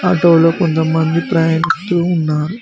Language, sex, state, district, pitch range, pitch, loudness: Telugu, male, Telangana, Mahabubabad, 160-175 Hz, 165 Hz, -14 LUFS